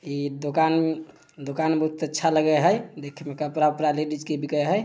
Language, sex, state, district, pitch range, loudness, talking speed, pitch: Maithili, male, Bihar, Samastipur, 150-160 Hz, -24 LUFS, 185 wpm, 155 Hz